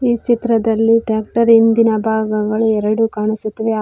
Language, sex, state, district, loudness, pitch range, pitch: Kannada, female, Karnataka, Koppal, -15 LUFS, 215-230 Hz, 225 Hz